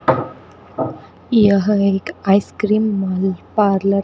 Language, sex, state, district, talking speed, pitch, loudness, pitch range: Hindi, female, Rajasthan, Bikaner, 90 wpm, 200 Hz, -17 LUFS, 195-210 Hz